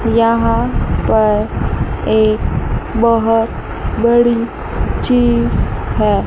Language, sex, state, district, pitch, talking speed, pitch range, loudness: Hindi, male, Chandigarh, Chandigarh, 230 Hz, 65 wpm, 225-235 Hz, -15 LUFS